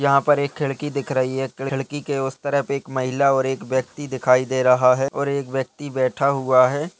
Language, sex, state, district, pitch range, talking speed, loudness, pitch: Hindi, male, Uttar Pradesh, Budaun, 130-140 Hz, 225 wpm, -21 LUFS, 135 Hz